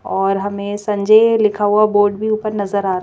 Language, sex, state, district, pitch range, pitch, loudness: Hindi, female, Madhya Pradesh, Bhopal, 200-215 Hz, 205 Hz, -15 LUFS